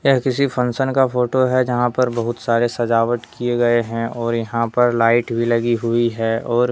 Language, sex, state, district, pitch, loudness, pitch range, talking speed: Hindi, male, Jharkhand, Deoghar, 120 Hz, -18 LUFS, 115-125 Hz, 215 wpm